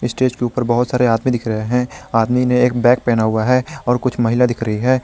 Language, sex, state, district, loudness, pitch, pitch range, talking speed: Hindi, male, Jharkhand, Garhwa, -17 LUFS, 125 Hz, 115-125 Hz, 260 wpm